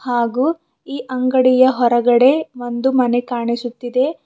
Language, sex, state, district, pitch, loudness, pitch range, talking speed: Kannada, female, Karnataka, Bidar, 255 Hz, -16 LUFS, 240-265 Hz, 100 wpm